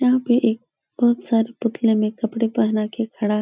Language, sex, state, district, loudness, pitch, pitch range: Hindi, female, Uttar Pradesh, Etah, -21 LUFS, 230 Hz, 215-240 Hz